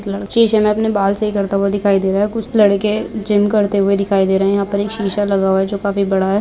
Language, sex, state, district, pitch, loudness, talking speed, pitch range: Hindi, male, Jharkhand, Sahebganj, 200 Hz, -16 LUFS, 290 wpm, 195-210 Hz